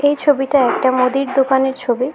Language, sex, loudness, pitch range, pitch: Bengali, female, -15 LUFS, 255-275 Hz, 265 Hz